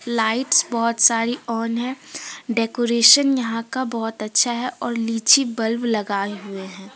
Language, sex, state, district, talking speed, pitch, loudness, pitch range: Hindi, female, Jharkhand, Deoghar, 145 wpm, 230 Hz, -19 LUFS, 225-250 Hz